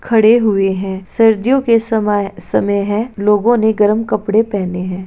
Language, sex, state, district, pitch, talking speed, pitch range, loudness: Hindi, female, Uttar Pradesh, Jalaun, 210 Hz, 165 wpm, 200-225 Hz, -14 LUFS